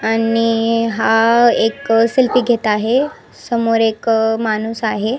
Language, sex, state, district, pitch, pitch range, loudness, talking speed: Marathi, female, Maharashtra, Nagpur, 225 Hz, 225-235 Hz, -15 LUFS, 150 wpm